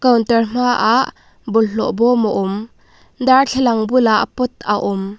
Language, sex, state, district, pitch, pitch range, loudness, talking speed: Mizo, female, Mizoram, Aizawl, 230 Hz, 215-250 Hz, -16 LUFS, 125 wpm